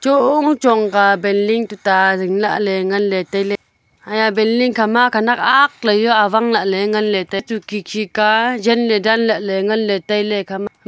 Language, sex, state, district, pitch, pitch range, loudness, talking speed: Wancho, female, Arunachal Pradesh, Longding, 215 Hz, 200-225 Hz, -15 LUFS, 180 wpm